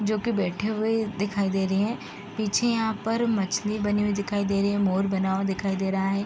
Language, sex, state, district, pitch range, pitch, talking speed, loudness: Hindi, female, Uttar Pradesh, Gorakhpur, 195-215 Hz, 205 Hz, 230 wpm, -26 LUFS